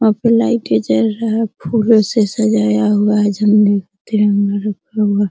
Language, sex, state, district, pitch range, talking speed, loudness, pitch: Hindi, female, Bihar, Araria, 200-220 Hz, 135 wpm, -15 LUFS, 210 Hz